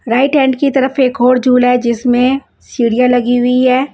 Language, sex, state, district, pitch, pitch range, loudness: Hindi, female, Punjab, Fazilka, 250 Hz, 245-265 Hz, -12 LUFS